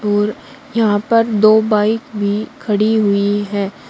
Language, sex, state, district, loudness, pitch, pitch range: Hindi, female, Uttar Pradesh, Shamli, -16 LUFS, 210 Hz, 205-220 Hz